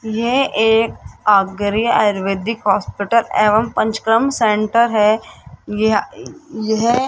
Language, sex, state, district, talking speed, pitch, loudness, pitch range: Hindi, female, Rajasthan, Jaipur, 85 wpm, 220 Hz, -16 LUFS, 210-230 Hz